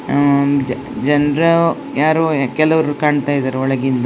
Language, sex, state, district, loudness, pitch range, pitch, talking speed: Kannada, female, Karnataka, Dakshina Kannada, -16 LUFS, 135-155 Hz, 145 Hz, 135 wpm